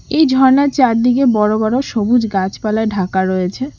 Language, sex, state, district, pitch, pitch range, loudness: Bengali, female, West Bengal, Cooch Behar, 225 Hz, 210-260 Hz, -14 LUFS